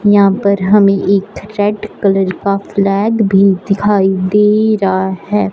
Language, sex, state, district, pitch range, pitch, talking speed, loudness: Hindi, female, Punjab, Fazilka, 195-210 Hz, 200 Hz, 140 wpm, -12 LUFS